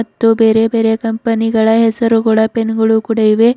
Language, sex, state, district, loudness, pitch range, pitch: Kannada, female, Karnataka, Bidar, -13 LUFS, 220-225 Hz, 225 Hz